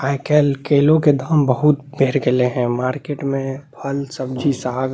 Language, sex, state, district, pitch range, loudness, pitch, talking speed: Maithili, male, Bihar, Saharsa, 130-145 Hz, -18 LUFS, 140 Hz, 170 wpm